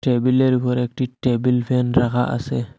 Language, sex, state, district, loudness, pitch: Bengali, male, Assam, Hailakandi, -19 LUFS, 125 Hz